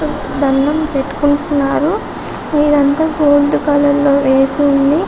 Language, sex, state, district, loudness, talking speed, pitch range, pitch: Telugu, female, Telangana, Karimnagar, -13 LUFS, 95 wpm, 280-295 Hz, 285 Hz